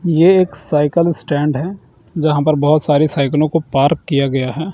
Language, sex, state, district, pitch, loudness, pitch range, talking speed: Hindi, male, Chandigarh, Chandigarh, 155 Hz, -15 LUFS, 145-165 Hz, 190 wpm